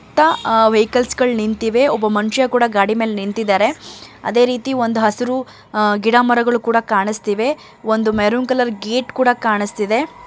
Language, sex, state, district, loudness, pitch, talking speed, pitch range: Kannada, male, Karnataka, Mysore, -16 LUFS, 230 Hz, 145 wpm, 215-245 Hz